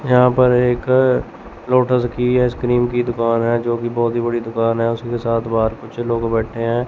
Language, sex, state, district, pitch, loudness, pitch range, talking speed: Hindi, male, Chandigarh, Chandigarh, 120 Hz, -17 LUFS, 115-125 Hz, 210 wpm